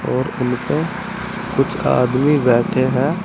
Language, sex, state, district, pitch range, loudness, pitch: Hindi, male, Uttar Pradesh, Saharanpur, 125-195 Hz, -18 LUFS, 140 Hz